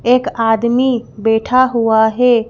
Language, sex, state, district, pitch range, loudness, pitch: Hindi, female, Madhya Pradesh, Bhopal, 225-250 Hz, -14 LUFS, 235 Hz